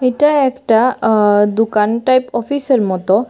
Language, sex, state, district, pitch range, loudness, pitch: Bengali, female, Assam, Hailakandi, 210-260 Hz, -14 LUFS, 230 Hz